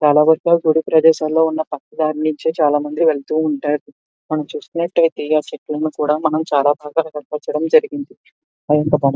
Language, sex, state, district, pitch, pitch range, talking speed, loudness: Telugu, male, Andhra Pradesh, Visakhapatnam, 155 Hz, 150-160 Hz, 130 wpm, -17 LUFS